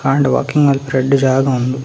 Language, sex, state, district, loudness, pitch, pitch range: Tulu, male, Karnataka, Dakshina Kannada, -14 LUFS, 135 Hz, 130-140 Hz